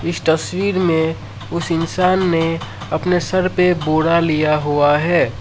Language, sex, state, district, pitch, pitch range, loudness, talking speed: Hindi, male, Assam, Sonitpur, 165 Hz, 155-180 Hz, -17 LUFS, 145 wpm